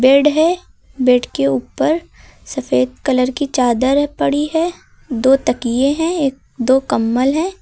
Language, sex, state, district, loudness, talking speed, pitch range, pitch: Hindi, female, Uttar Pradesh, Lucknow, -16 LUFS, 150 wpm, 250-300 Hz, 270 Hz